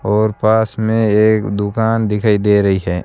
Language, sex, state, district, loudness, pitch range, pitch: Hindi, male, Rajasthan, Bikaner, -15 LUFS, 105-110 Hz, 105 Hz